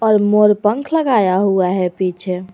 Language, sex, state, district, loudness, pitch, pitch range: Hindi, female, Jharkhand, Garhwa, -15 LUFS, 200 Hz, 185-210 Hz